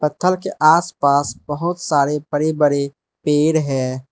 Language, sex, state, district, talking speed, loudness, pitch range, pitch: Hindi, male, Manipur, Imphal West, 130 wpm, -18 LUFS, 140-160 Hz, 150 Hz